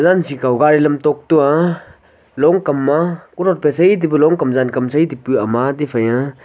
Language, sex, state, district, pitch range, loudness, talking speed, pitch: Wancho, male, Arunachal Pradesh, Longding, 135-165 Hz, -15 LUFS, 165 wpm, 150 Hz